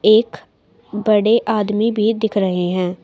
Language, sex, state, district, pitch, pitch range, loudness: Hindi, female, Uttar Pradesh, Shamli, 210 Hz, 195-220 Hz, -17 LUFS